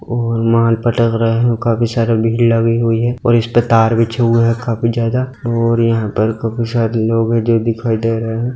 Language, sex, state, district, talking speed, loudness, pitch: Hindi, male, Bihar, Muzaffarpur, 225 wpm, -15 LUFS, 115 Hz